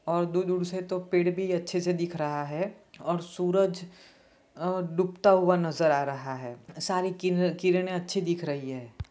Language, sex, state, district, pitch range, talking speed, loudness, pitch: Hindi, female, Bihar, Gopalganj, 160-185 Hz, 170 wpm, -28 LUFS, 180 Hz